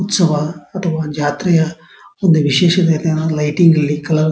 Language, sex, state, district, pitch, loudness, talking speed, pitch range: Kannada, male, Karnataka, Dharwad, 160 Hz, -15 LUFS, 140 wpm, 150-175 Hz